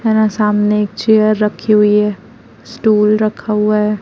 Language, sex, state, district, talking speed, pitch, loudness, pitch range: Hindi, female, Chhattisgarh, Raipur, 165 wpm, 210 Hz, -13 LUFS, 210-215 Hz